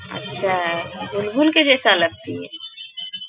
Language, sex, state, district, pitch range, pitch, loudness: Hindi, female, Bihar, Bhagalpur, 185-300 Hz, 205 Hz, -18 LUFS